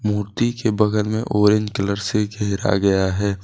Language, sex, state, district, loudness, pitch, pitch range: Hindi, male, Jharkhand, Deoghar, -20 LUFS, 105 Hz, 100-110 Hz